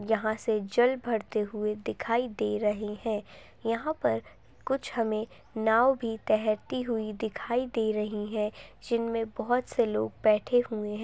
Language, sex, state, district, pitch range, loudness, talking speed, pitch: Hindi, female, Uttar Pradesh, Jyotiba Phule Nagar, 215-240 Hz, -29 LUFS, 150 wpm, 220 Hz